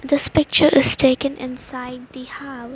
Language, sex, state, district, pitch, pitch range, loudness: English, female, Haryana, Rohtak, 270 Hz, 255-285 Hz, -17 LUFS